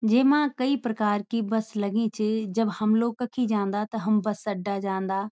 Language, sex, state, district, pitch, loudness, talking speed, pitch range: Garhwali, female, Uttarakhand, Tehri Garhwal, 215 Hz, -26 LUFS, 190 wpm, 210-230 Hz